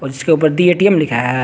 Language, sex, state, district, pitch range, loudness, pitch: Hindi, male, Jharkhand, Garhwa, 135-180 Hz, -13 LUFS, 155 Hz